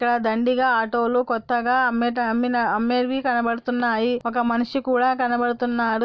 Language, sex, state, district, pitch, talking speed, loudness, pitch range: Telugu, female, Andhra Pradesh, Anantapur, 240 Hz, 130 wpm, -21 LUFS, 235-250 Hz